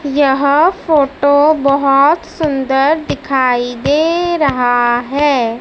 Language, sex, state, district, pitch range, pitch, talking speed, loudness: Hindi, female, Madhya Pradesh, Dhar, 265-305 Hz, 280 Hz, 85 wpm, -13 LUFS